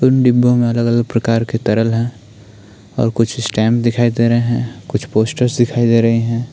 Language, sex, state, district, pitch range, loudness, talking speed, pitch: Hindi, male, Uttarakhand, Tehri Garhwal, 115-120 Hz, -15 LUFS, 185 wpm, 115 Hz